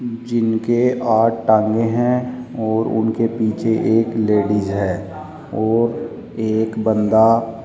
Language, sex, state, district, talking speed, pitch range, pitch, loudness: Hindi, male, Rajasthan, Jaipur, 110 wpm, 110-115 Hz, 115 Hz, -18 LUFS